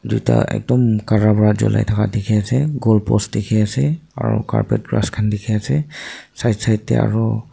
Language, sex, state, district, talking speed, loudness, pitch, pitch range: Nagamese, male, Nagaland, Dimapur, 175 wpm, -18 LUFS, 110 Hz, 105-125 Hz